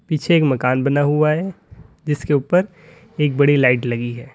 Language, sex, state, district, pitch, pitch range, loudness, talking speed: Hindi, male, Uttar Pradesh, Lalitpur, 145 Hz, 130-160 Hz, -18 LUFS, 180 wpm